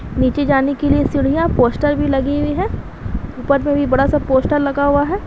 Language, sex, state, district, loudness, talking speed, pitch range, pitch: Hindi, female, Bihar, Kishanganj, -16 LUFS, 195 wpm, 275-290 Hz, 285 Hz